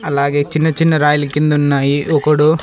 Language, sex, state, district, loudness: Telugu, male, Andhra Pradesh, Annamaya, -14 LUFS